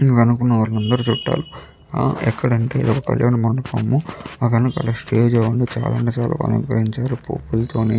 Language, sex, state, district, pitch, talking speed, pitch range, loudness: Telugu, male, Andhra Pradesh, Chittoor, 120 Hz, 145 wpm, 115-125 Hz, -19 LUFS